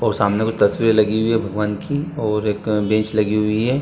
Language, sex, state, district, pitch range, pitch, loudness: Hindi, male, Bihar, Saran, 105-115 Hz, 110 Hz, -19 LUFS